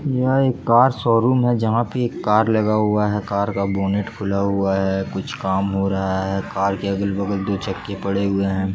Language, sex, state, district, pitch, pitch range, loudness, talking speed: Hindi, male, Jharkhand, Jamtara, 100 Hz, 95-110 Hz, -20 LUFS, 210 wpm